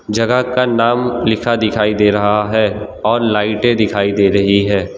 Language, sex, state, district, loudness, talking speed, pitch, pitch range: Hindi, male, Gujarat, Valsad, -14 LUFS, 170 wpm, 105 Hz, 105-120 Hz